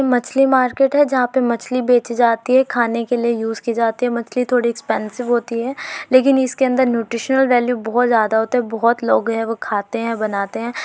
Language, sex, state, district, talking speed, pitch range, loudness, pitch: Hindi, female, Uttar Pradesh, Varanasi, 215 wpm, 230-255 Hz, -17 LUFS, 240 Hz